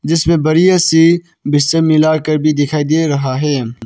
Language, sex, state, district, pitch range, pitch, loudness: Hindi, male, Arunachal Pradesh, Papum Pare, 145-165 Hz, 155 Hz, -13 LUFS